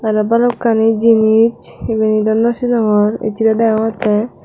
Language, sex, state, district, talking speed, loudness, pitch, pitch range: Chakma, female, Tripura, Dhalai, 120 wpm, -14 LUFS, 220 Hz, 215-230 Hz